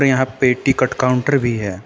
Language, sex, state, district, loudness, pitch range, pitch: Hindi, male, Uttar Pradesh, Lucknow, -17 LUFS, 120-135 Hz, 130 Hz